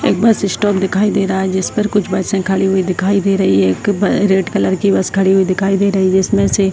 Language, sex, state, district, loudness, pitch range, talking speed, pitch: Hindi, female, Bihar, Jahanabad, -14 LUFS, 190-200 Hz, 265 wpm, 195 Hz